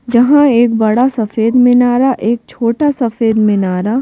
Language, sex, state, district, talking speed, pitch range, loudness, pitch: Hindi, female, Madhya Pradesh, Bhopal, 135 wpm, 225-250 Hz, -12 LUFS, 240 Hz